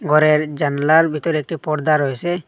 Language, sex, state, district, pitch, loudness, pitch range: Bengali, male, Assam, Hailakandi, 155 Hz, -17 LUFS, 150-160 Hz